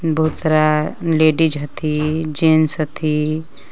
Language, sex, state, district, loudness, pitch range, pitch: Magahi, female, Jharkhand, Palamu, -17 LUFS, 150-160 Hz, 155 Hz